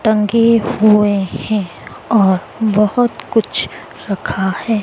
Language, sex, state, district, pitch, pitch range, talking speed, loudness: Hindi, female, Madhya Pradesh, Dhar, 210 Hz, 200-225 Hz, 100 wpm, -15 LUFS